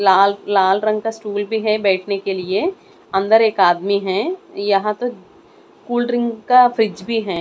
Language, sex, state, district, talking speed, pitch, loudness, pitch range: Hindi, female, Odisha, Khordha, 180 wpm, 210 Hz, -18 LUFS, 195-235 Hz